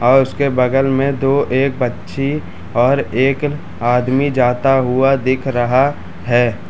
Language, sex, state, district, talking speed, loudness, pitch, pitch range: Hindi, male, Bihar, Madhepura, 135 wpm, -16 LUFS, 130 Hz, 120-135 Hz